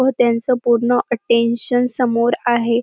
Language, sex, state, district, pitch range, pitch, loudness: Marathi, female, Maharashtra, Dhule, 235-245 Hz, 240 Hz, -17 LUFS